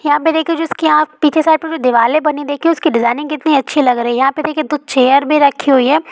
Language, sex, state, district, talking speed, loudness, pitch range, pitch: Hindi, female, Bihar, Supaul, 265 wpm, -13 LUFS, 275-315 Hz, 300 Hz